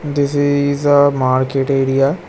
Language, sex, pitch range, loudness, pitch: English, male, 135-145 Hz, -15 LUFS, 140 Hz